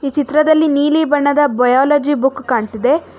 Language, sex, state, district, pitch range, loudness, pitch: Kannada, female, Karnataka, Bangalore, 265-295 Hz, -14 LUFS, 290 Hz